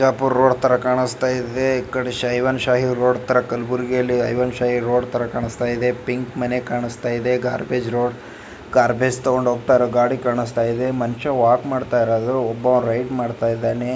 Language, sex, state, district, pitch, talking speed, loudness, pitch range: Kannada, male, Karnataka, Bijapur, 125 Hz, 140 wpm, -20 LUFS, 120-125 Hz